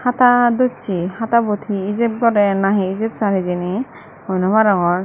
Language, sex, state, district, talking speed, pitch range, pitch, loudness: Chakma, female, Tripura, Dhalai, 155 wpm, 190-235 Hz, 205 Hz, -17 LUFS